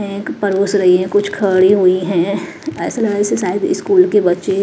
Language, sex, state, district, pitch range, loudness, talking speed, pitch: Hindi, female, Maharashtra, Mumbai Suburban, 185-205 Hz, -14 LUFS, 205 wpm, 200 Hz